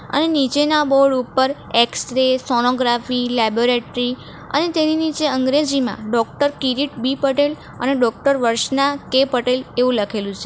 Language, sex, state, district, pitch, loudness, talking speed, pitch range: Gujarati, female, Gujarat, Valsad, 260 Hz, -18 LUFS, 140 wpm, 245-280 Hz